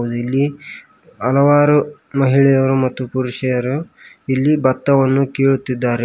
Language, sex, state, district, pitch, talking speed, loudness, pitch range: Kannada, male, Karnataka, Koppal, 135 Hz, 80 wpm, -16 LUFS, 130-140 Hz